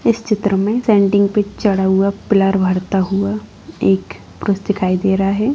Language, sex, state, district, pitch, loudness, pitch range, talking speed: Hindi, female, Bihar, Sitamarhi, 200 Hz, -16 LUFS, 190-210 Hz, 175 wpm